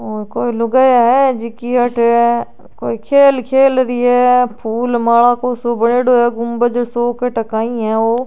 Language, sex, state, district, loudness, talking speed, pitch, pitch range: Rajasthani, female, Rajasthan, Churu, -14 LUFS, 175 wpm, 240 Hz, 235-250 Hz